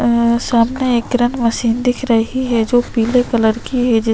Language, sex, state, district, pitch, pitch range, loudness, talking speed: Hindi, female, Chhattisgarh, Sukma, 235 Hz, 230-245 Hz, -15 LUFS, 215 wpm